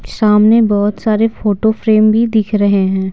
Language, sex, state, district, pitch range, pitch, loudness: Hindi, female, Bihar, Patna, 205-220 Hz, 215 Hz, -12 LUFS